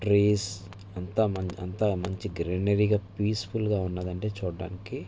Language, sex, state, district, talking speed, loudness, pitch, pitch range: Telugu, male, Andhra Pradesh, Visakhapatnam, 140 wpm, -29 LUFS, 100 Hz, 90-105 Hz